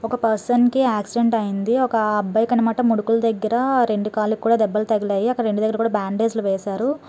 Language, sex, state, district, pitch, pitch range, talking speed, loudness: Telugu, female, Andhra Pradesh, Srikakulam, 225 Hz, 215-240 Hz, 185 wpm, -20 LUFS